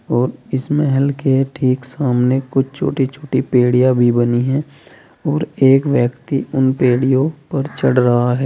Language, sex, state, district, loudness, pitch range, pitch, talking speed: Hindi, male, Uttar Pradesh, Saharanpur, -16 LUFS, 125-140 Hz, 130 Hz, 150 wpm